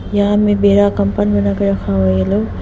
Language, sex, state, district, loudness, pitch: Hindi, female, Arunachal Pradesh, Papum Pare, -14 LUFS, 100 Hz